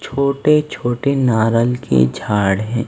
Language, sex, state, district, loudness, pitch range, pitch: Hindi, male, Maharashtra, Mumbai Suburban, -16 LUFS, 105-140 Hz, 120 Hz